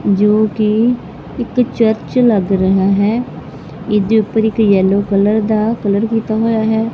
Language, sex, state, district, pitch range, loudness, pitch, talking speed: Punjabi, female, Punjab, Fazilka, 200-225 Hz, -14 LUFS, 215 Hz, 145 wpm